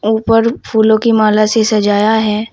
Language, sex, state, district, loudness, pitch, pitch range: Hindi, female, Uttar Pradesh, Saharanpur, -12 LUFS, 220 Hz, 215-225 Hz